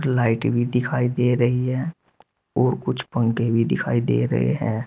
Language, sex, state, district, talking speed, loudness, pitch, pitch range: Hindi, male, Uttar Pradesh, Shamli, 170 wpm, -21 LUFS, 120 Hz, 115-125 Hz